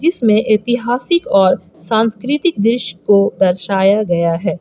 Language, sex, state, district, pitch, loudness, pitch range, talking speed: Hindi, female, Jharkhand, Garhwa, 210 Hz, -14 LUFS, 185-240 Hz, 115 wpm